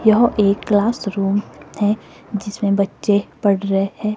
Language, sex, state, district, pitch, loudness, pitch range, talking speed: Hindi, female, Himachal Pradesh, Shimla, 205 Hz, -19 LUFS, 200-215 Hz, 145 wpm